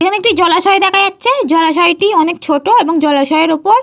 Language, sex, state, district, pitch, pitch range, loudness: Bengali, female, Jharkhand, Jamtara, 345 Hz, 320-395 Hz, -10 LUFS